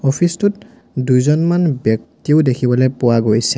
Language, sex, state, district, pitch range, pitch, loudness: Assamese, male, Assam, Sonitpur, 120-160 Hz, 130 Hz, -15 LUFS